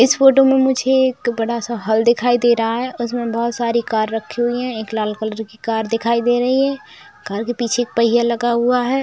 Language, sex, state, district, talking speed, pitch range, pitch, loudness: Hindi, female, Chhattisgarh, Raigarh, 240 wpm, 230-245 Hz, 235 Hz, -17 LUFS